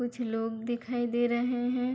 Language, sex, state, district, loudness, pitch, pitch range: Hindi, female, Bihar, Bhagalpur, -31 LUFS, 240 Hz, 235-245 Hz